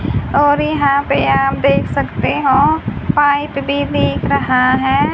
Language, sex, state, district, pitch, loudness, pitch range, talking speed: Hindi, female, Haryana, Charkhi Dadri, 280 Hz, -14 LUFS, 265-290 Hz, 140 wpm